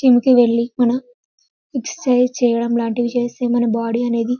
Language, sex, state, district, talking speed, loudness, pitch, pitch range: Telugu, female, Telangana, Karimnagar, 150 wpm, -17 LUFS, 240 Hz, 235-250 Hz